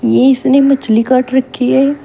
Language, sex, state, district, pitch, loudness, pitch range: Hindi, female, Uttar Pradesh, Shamli, 260 Hz, -11 LUFS, 250-275 Hz